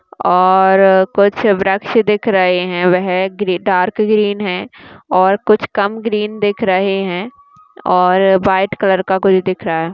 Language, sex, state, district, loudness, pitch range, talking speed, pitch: Hindi, female, Bihar, Madhepura, -14 LUFS, 185-210 Hz, 155 wpm, 195 Hz